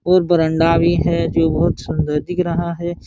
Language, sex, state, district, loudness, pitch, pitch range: Hindi, male, Uttar Pradesh, Jalaun, -17 LUFS, 170 Hz, 165-175 Hz